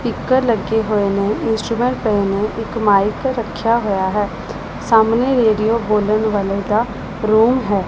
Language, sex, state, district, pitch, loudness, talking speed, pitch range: Punjabi, female, Punjab, Pathankot, 220 Hz, -17 LUFS, 145 wpm, 205-230 Hz